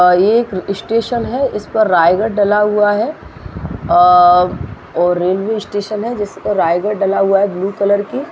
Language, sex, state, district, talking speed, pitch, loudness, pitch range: Hindi, female, Chhattisgarh, Raigarh, 165 wpm, 205 Hz, -14 LUFS, 180-215 Hz